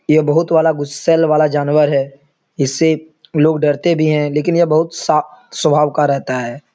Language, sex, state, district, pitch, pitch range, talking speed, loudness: Hindi, male, Uttar Pradesh, Etah, 150 Hz, 145-160 Hz, 175 wpm, -15 LUFS